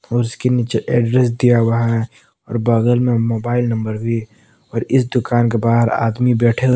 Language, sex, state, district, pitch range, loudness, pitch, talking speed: Hindi, male, Jharkhand, Palamu, 115-120 Hz, -17 LUFS, 120 Hz, 185 wpm